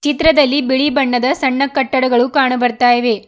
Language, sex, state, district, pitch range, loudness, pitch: Kannada, female, Karnataka, Bidar, 245-285 Hz, -14 LUFS, 265 Hz